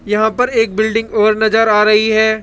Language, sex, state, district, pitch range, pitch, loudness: Hindi, male, Rajasthan, Jaipur, 215-225 Hz, 220 Hz, -13 LUFS